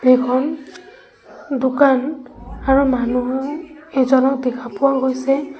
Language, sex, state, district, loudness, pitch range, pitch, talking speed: Assamese, female, Assam, Sonitpur, -18 LUFS, 255-290 Hz, 270 Hz, 85 wpm